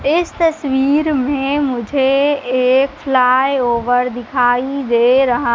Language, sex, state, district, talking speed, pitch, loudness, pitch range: Hindi, female, Madhya Pradesh, Katni, 110 wpm, 265 Hz, -15 LUFS, 245-280 Hz